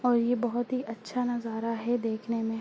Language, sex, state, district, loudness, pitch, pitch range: Hindi, female, Uttar Pradesh, Ghazipur, -30 LUFS, 235 Hz, 225-245 Hz